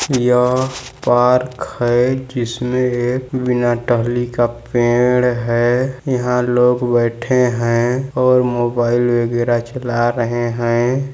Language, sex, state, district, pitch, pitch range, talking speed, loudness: Hindi, male, Chhattisgarh, Balrampur, 120 Hz, 120-125 Hz, 110 wpm, -16 LUFS